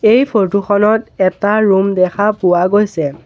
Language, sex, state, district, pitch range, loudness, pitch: Assamese, male, Assam, Sonitpur, 185-215 Hz, -13 LUFS, 200 Hz